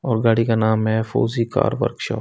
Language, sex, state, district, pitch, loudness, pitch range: Hindi, male, Delhi, New Delhi, 115 Hz, -20 LUFS, 110-115 Hz